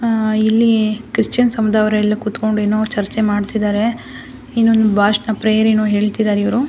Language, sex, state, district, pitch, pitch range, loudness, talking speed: Kannada, female, Karnataka, Dakshina Kannada, 215 Hz, 210-225 Hz, -15 LUFS, 155 wpm